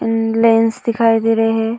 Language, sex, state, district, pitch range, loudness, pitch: Hindi, female, Uttar Pradesh, Hamirpur, 225-230 Hz, -15 LUFS, 225 Hz